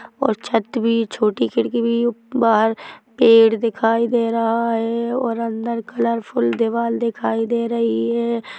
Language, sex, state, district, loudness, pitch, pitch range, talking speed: Hindi, female, Chhattisgarh, Bilaspur, -19 LUFS, 230 Hz, 225-235 Hz, 145 wpm